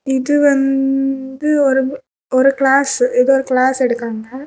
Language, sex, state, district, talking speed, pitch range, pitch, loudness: Tamil, female, Tamil Nadu, Kanyakumari, 135 wpm, 255-275 Hz, 270 Hz, -15 LUFS